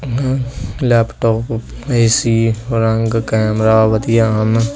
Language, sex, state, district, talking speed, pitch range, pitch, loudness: Punjabi, male, Punjab, Kapurthala, 75 wpm, 110-120 Hz, 115 Hz, -15 LUFS